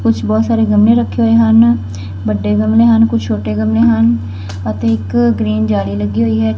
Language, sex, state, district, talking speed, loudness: Punjabi, female, Punjab, Fazilka, 190 wpm, -13 LUFS